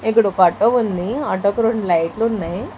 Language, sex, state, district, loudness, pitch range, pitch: Telugu, female, Telangana, Hyderabad, -18 LUFS, 180-225 Hz, 205 Hz